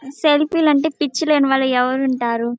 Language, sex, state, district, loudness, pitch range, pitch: Telugu, female, Andhra Pradesh, Chittoor, -17 LUFS, 255-300 Hz, 275 Hz